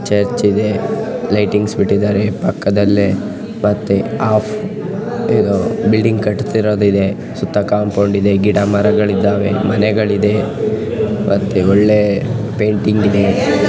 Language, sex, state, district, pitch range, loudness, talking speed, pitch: Kannada, male, Karnataka, Chamarajanagar, 100-105 Hz, -15 LUFS, 90 wpm, 105 Hz